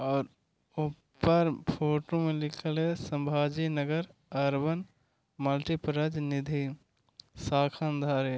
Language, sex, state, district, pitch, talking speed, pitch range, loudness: Hindi, male, Maharashtra, Aurangabad, 150 Hz, 85 wpm, 140-155 Hz, -31 LUFS